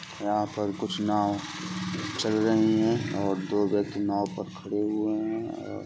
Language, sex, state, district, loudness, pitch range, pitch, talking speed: Bhojpuri, male, Uttar Pradesh, Gorakhpur, -28 LUFS, 100-110 Hz, 105 Hz, 175 wpm